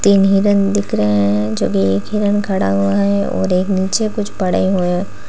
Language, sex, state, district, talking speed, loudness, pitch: Hindi, female, Uttar Pradesh, Lalitpur, 215 wpm, -16 LUFS, 185 Hz